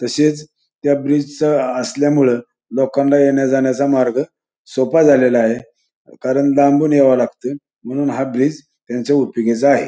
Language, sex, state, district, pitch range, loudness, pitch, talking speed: Marathi, male, Maharashtra, Pune, 130-145 Hz, -16 LUFS, 140 Hz, 125 wpm